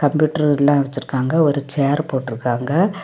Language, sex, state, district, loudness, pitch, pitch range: Tamil, female, Tamil Nadu, Kanyakumari, -18 LUFS, 145 Hz, 135-155 Hz